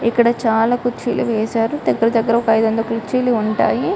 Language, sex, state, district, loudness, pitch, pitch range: Telugu, female, Telangana, Karimnagar, -17 LUFS, 230 Hz, 225-235 Hz